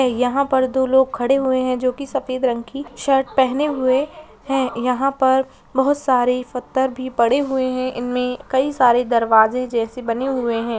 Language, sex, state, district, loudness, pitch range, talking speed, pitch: Hindi, female, Bihar, Purnia, -19 LUFS, 250-265 Hz, 185 wpm, 255 Hz